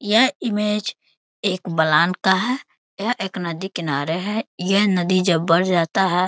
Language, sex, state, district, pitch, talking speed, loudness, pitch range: Hindi, male, Bihar, Bhagalpur, 190 Hz, 160 wpm, -20 LUFS, 175-210 Hz